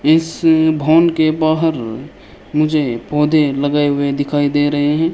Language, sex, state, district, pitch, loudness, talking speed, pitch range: Hindi, male, Rajasthan, Bikaner, 150 Hz, -15 LUFS, 140 wpm, 145-160 Hz